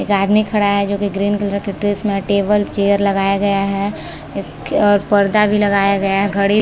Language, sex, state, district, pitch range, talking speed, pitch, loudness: Hindi, female, Chhattisgarh, Balrampur, 200-205 Hz, 220 wpm, 200 Hz, -16 LUFS